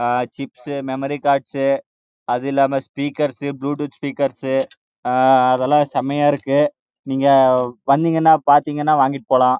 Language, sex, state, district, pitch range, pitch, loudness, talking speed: Tamil, male, Karnataka, Chamarajanagar, 130-145 Hz, 140 Hz, -18 LUFS, 105 wpm